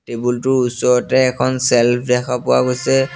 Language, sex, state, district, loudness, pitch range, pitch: Assamese, male, Assam, Sonitpur, -16 LUFS, 120-130 Hz, 125 Hz